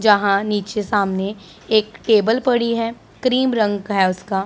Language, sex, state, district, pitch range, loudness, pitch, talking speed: Hindi, female, Punjab, Pathankot, 200-230 Hz, -19 LUFS, 210 Hz, 160 wpm